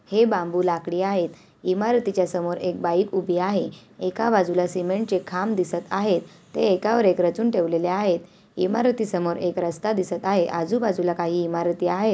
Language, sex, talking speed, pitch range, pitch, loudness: Awadhi, female, 155 wpm, 175-200 Hz, 180 Hz, -23 LUFS